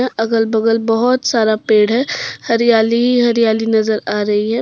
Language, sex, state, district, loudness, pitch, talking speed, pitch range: Hindi, female, Jharkhand, Deoghar, -14 LUFS, 225 Hz, 170 wpm, 220-235 Hz